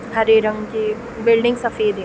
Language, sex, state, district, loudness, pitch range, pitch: Hindi, female, Chhattisgarh, Raigarh, -18 LUFS, 215-235 Hz, 225 Hz